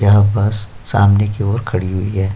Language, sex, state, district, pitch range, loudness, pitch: Hindi, male, Uttar Pradesh, Jyotiba Phule Nagar, 100-105 Hz, -16 LUFS, 100 Hz